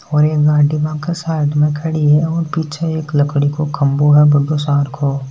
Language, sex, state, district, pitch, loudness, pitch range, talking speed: Hindi, male, Rajasthan, Nagaur, 150 Hz, -15 LUFS, 145-155 Hz, 170 wpm